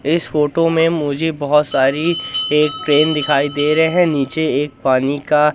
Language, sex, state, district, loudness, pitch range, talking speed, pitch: Hindi, male, Madhya Pradesh, Katni, -16 LUFS, 145-160 Hz, 175 wpm, 150 Hz